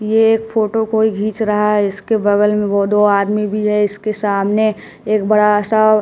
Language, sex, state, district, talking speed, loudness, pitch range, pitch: Hindi, male, Bihar, West Champaran, 200 wpm, -15 LUFS, 205-215 Hz, 210 Hz